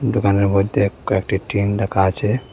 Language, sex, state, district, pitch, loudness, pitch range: Bengali, male, Assam, Hailakandi, 100 Hz, -19 LUFS, 100-105 Hz